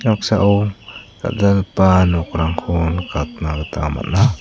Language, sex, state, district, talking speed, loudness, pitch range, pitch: Garo, male, Meghalaya, South Garo Hills, 80 wpm, -17 LUFS, 85-105 Hz, 95 Hz